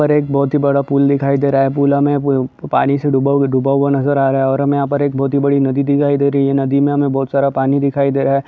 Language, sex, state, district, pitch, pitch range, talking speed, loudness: Hindi, male, Chhattisgarh, Bastar, 140 Hz, 135-140 Hz, 320 wpm, -15 LUFS